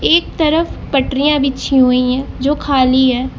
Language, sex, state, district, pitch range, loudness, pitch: Hindi, female, Uttar Pradesh, Lucknow, 260-290 Hz, -14 LUFS, 270 Hz